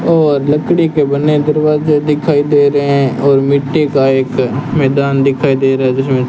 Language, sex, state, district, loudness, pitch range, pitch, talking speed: Hindi, male, Rajasthan, Bikaner, -12 LUFS, 135-150 Hz, 140 Hz, 180 wpm